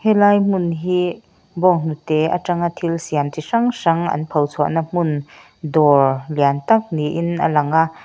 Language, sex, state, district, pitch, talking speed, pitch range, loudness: Mizo, female, Mizoram, Aizawl, 165 Hz, 155 wpm, 150-180 Hz, -18 LUFS